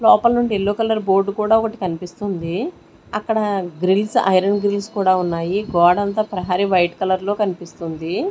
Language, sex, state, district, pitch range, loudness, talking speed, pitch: Telugu, female, Andhra Pradesh, Sri Satya Sai, 180-210 Hz, -19 LUFS, 145 wpm, 200 Hz